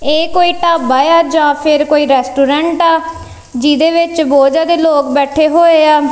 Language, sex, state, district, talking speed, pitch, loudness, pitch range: Punjabi, female, Punjab, Kapurthala, 165 wpm, 310 Hz, -10 LUFS, 285-330 Hz